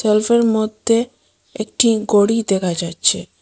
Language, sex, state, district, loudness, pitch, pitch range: Bengali, female, Assam, Hailakandi, -16 LUFS, 215 Hz, 205-230 Hz